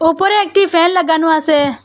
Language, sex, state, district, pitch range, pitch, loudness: Bengali, female, Assam, Hailakandi, 315-390 Hz, 330 Hz, -12 LUFS